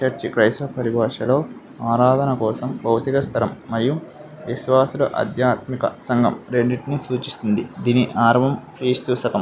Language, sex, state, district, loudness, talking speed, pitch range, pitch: Telugu, male, Andhra Pradesh, Visakhapatnam, -20 LUFS, 115 wpm, 120-135 Hz, 125 Hz